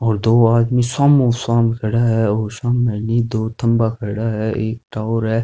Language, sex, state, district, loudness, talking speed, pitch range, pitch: Rajasthani, male, Rajasthan, Nagaur, -17 LUFS, 200 wpm, 110-120 Hz, 115 Hz